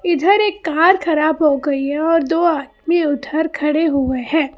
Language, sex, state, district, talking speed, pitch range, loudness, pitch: Hindi, female, Karnataka, Bangalore, 185 wpm, 290-335 Hz, -16 LUFS, 315 Hz